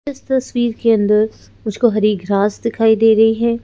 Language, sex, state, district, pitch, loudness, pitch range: Hindi, female, Madhya Pradesh, Bhopal, 225 Hz, -15 LUFS, 215-235 Hz